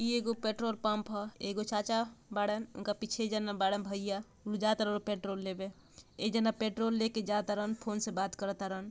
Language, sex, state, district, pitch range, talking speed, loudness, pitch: Bhojpuri, female, Bihar, Gopalganj, 205-220 Hz, 190 wpm, -35 LUFS, 210 Hz